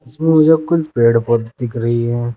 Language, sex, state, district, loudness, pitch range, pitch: Hindi, male, Uttar Pradesh, Saharanpur, -15 LUFS, 115-155 Hz, 120 Hz